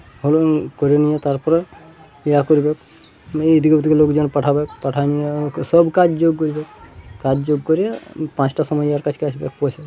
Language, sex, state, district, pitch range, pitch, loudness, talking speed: Bengali, male, West Bengal, Purulia, 145-155 Hz, 150 Hz, -17 LUFS, 160 wpm